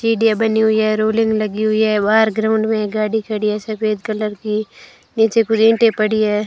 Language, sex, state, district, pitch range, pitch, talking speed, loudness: Hindi, female, Rajasthan, Bikaner, 215-220 Hz, 220 Hz, 205 wpm, -16 LUFS